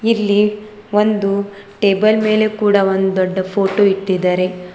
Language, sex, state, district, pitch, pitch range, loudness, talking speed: Kannada, female, Karnataka, Bangalore, 200 Hz, 190-210 Hz, -15 LUFS, 115 wpm